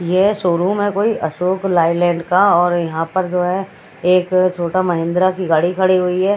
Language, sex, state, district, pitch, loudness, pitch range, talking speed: Hindi, female, Haryana, Rohtak, 180 Hz, -16 LUFS, 175-185 Hz, 190 wpm